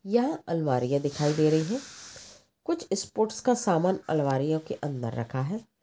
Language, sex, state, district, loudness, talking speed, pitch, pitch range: Hindi, female, Maharashtra, Pune, -28 LUFS, 155 wpm, 160 Hz, 145-220 Hz